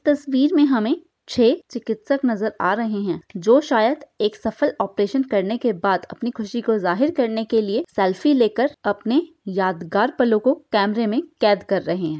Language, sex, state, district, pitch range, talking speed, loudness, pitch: Hindi, female, Bihar, Saharsa, 205-270 Hz, 180 wpm, -21 LUFS, 225 Hz